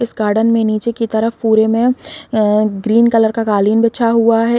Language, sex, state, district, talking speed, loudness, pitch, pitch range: Hindi, female, Uttar Pradesh, Gorakhpur, 210 wpm, -14 LUFS, 225 Hz, 220-230 Hz